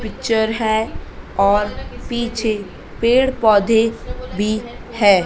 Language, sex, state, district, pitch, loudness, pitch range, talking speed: Hindi, female, Madhya Pradesh, Dhar, 220 Hz, -18 LUFS, 210-230 Hz, 90 wpm